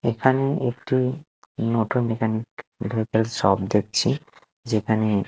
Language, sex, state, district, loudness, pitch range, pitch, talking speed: Bengali, male, Odisha, Nuapada, -23 LUFS, 110-130 Hz, 115 Hz, 100 wpm